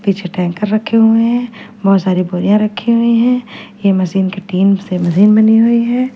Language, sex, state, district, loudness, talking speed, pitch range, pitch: Hindi, female, Punjab, Fazilka, -13 LUFS, 195 wpm, 190-230 Hz, 210 Hz